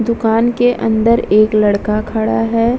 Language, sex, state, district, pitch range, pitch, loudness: Hindi, female, Bihar, Vaishali, 215-230 Hz, 225 Hz, -14 LUFS